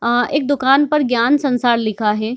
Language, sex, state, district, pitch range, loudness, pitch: Hindi, female, Bihar, Darbhanga, 235-285 Hz, -16 LUFS, 245 Hz